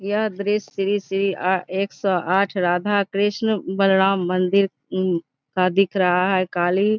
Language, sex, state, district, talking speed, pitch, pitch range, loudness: Hindi, female, Bihar, Begusarai, 155 wpm, 195 Hz, 185-200 Hz, -21 LUFS